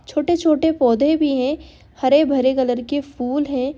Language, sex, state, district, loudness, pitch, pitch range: Hindi, female, Bihar, Darbhanga, -18 LUFS, 285 Hz, 260-300 Hz